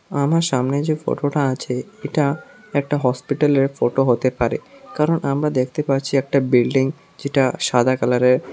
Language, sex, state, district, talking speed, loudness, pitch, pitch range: Bengali, male, Tripura, South Tripura, 160 wpm, -19 LUFS, 140 Hz, 130-145 Hz